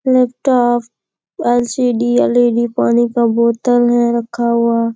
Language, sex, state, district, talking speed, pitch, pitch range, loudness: Hindi, female, Bihar, Kishanganj, 110 wpm, 240 Hz, 235-245 Hz, -14 LUFS